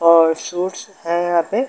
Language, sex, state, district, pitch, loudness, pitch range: Hindi, male, Bihar, Darbhanga, 170 Hz, -18 LUFS, 170-180 Hz